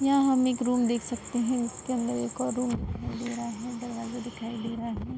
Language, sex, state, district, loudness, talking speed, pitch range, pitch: Hindi, female, Uttar Pradesh, Budaun, -29 LUFS, 245 wpm, 230-245 Hz, 240 Hz